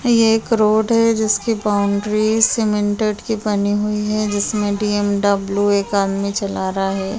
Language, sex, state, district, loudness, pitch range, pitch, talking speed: Hindi, female, Bihar, Samastipur, -17 LUFS, 200-220 Hz, 210 Hz, 150 wpm